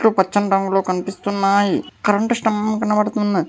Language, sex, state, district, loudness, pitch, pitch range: Telugu, male, Telangana, Hyderabad, -19 LUFS, 205 Hz, 195-210 Hz